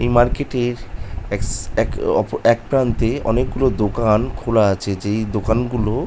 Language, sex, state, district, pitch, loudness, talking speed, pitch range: Bengali, male, West Bengal, North 24 Parganas, 115 Hz, -19 LUFS, 130 wpm, 105-120 Hz